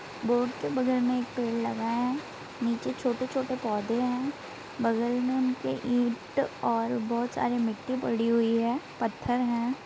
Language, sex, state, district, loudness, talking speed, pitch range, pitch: Hindi, female, Bihar, Saran, -29 LUFS, 150 wpm, 230-255 Hz, 245 Hz